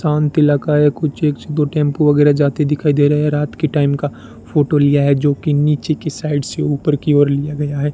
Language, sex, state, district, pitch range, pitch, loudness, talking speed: Hindi, male, Rajasthan, Bikaner, 145-150 Hz, 145 Hz, -16 LUFS, 250 wpm